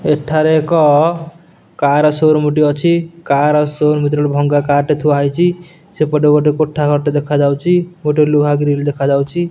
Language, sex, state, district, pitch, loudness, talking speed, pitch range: Odia, male, Odisha, Nuapada, 150 Hz, -13 LUFS, 165 wpm, 145-160 Hz